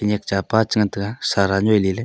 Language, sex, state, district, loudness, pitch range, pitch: Wancho, male, Arunachal Pradesh, Longding, -19 LUFS, 100-110 Hz, 105 Hz